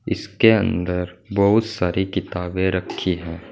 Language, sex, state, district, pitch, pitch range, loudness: Hindi, male, Uttar Pradesh, Saharanpur, 95 Hz, 90-100 Hz, -21 LUFS